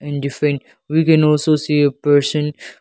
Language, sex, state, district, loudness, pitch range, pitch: English, male, Nagaland, Kohima, -16 LUFS, 145-150 Hz, 150 Hz